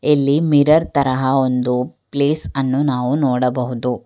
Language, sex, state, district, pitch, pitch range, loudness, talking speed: Kannada, female, Karnataka, Bangalore, 135 Hz, 125-145 Hz, -17 LUFS, 120 wpm